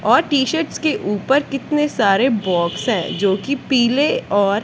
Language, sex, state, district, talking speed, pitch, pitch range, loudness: Hindi, female, Punjab, Kapurthala, 155 wpm, 255 Hz, 200-285 Hz, -18 LUFS